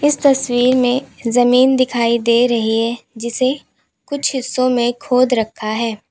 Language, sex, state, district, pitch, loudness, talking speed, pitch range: Hindi, female, Uttar Pradesh, Lalitpur, 245 Hz, -16 LUFS, 145 wpm, 235-255 Hz